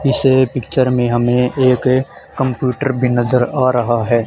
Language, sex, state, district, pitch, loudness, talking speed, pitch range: Hindi, male, Haryana, Charkhi Dadri, 125 Hz, -15 LUFS, 155 wpm, 120-130 Hz